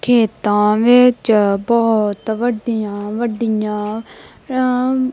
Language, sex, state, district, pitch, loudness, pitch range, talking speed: Punjabi, female, Punjab, Kapurthala, 225 Hz, -16 LUFS, 210-245 Hz, 70 wpm